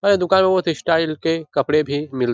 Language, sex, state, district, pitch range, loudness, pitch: Hindi, male, Bihar, Jahanabad, 145-180 Hz, -19 LUFS, 165 Hz